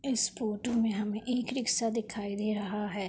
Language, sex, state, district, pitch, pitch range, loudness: Hindi, female, Uttar Pradesh, Budaun, 220 Hz, 210-240 Hz, -32 LUFS